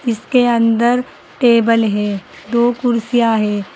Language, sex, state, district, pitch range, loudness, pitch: Hindi, female, Uttar Pradesh, Saharanpur, 220-240 Hz, -15 LUFS, 230 Hz